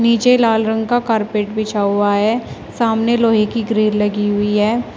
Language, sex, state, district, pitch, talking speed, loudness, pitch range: Hindi, female, Uttar Pradesh, Shamli, 220 Hz, 180 wpm, -16 LUFS, 210-230 Hz